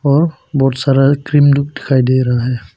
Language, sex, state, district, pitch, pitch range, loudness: Hindi, male, Arunachal Pradesh, Papum Pare, 135 Hz, 130-145 Hz, -13 LUFS